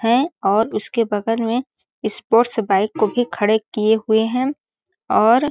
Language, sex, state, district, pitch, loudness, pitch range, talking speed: Hindi, female, Chhattisgarh, Balrampur, 225 Hz, -19 LUFS, 215-245 Hz, 165 wpm